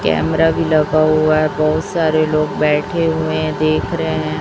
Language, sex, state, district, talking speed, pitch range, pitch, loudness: Hindi, female, Chhattisgarh, Raipur, 190 wpm, 150-155 Hz, 155 Hz, -16 LUFS